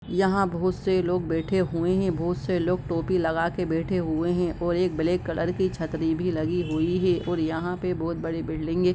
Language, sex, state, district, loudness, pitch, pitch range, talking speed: Hindi, male, Jharkhand, Jamtara, -26 LUFS, 175 Hz, 165-180 Hz, 215 wpm